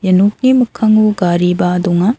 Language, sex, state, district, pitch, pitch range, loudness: Garo, female, Meghalaya, South Garo Hills, 200 Hz, 180-220 Hz, -12 LUFS